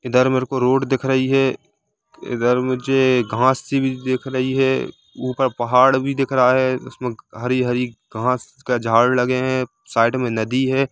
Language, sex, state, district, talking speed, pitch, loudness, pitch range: Hindi, male, Jharkhand, Jamtara, 175 wpm, 130 Hz, -19 LUFS, 125-130 Hz